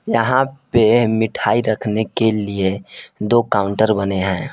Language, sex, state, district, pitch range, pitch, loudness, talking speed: Hindi, male, Jharkhand, Palamu, 100-115 Hz, 110 Hz, -17 LUFS, 135 wpm